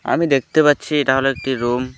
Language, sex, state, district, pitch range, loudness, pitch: Bengali, male, West Bengal, Alipurduar, 130-150 Hz, -17 LUFS, 135 Hz